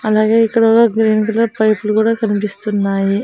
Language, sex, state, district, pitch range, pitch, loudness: Telugu, female, Andhra Pradesh, Annamaya, 210-225 Hz, 215 Hz, -14 LUFS